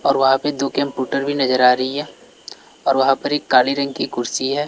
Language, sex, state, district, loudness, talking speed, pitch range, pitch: Hindi, male, Bihar, West Champaran, -18 LUFS, 245 wpm, 130-140 Hz, 135 Hz